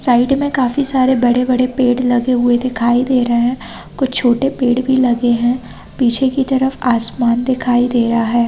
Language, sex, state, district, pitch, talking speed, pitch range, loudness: Hindi, female, Chhattisgarh, Balrampur, 250 Hz, 200 wpm, 240-260 Hz, -14 LUFS